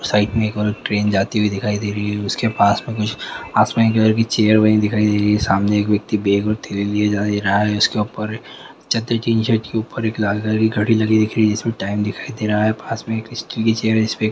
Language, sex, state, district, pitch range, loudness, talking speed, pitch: Hindi, male, Andhra Pradesh, Guntur, 105-110 Hz, -18 LUFS, 265 wpm, 105 Hz